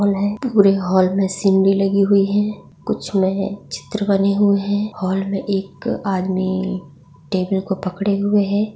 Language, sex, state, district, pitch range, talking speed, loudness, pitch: Hindi, female, Maharashtra, Pune, 190-200 Hz, 145 wpm, -19 LUFS, 195 Hz